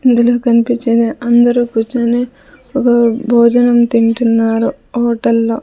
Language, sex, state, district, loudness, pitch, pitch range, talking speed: Telugu, female, Andhra Pradesh, Sri Satya Sai, -12 LUFS, 235 Hz, 230-245 Hz, 95 wpm